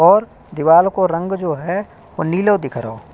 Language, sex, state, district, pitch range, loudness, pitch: Hindi, male, Uttar Pradesh, Hamirpur, 150-195 Hz, -17 LUFS, 170 Hz